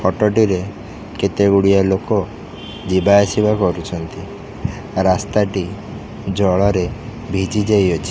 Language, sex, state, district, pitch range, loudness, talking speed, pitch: Odia, male, Odisha, Khordha, 95-105 Hz, -17 LUFS, 95 wpm, 100 Hz